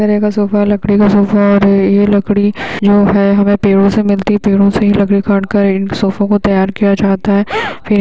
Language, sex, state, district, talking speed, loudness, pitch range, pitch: Hindi, female, Bihar, Saran, 210 wpm, -11 LUFS, 200-205 Hz, 205 Hz